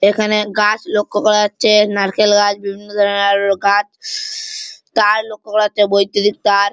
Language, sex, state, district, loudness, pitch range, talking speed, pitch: Bengali, male, West Bengal, Malda, -15 LUFS, 200-215 Hz, 145 wpm, 210 Hz